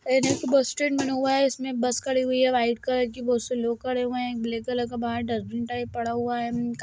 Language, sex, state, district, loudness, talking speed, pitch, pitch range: Hindi, male, Bihar, Gaya, -26 LUFS, 280 wpm, 245 Hz, 235-260 Hz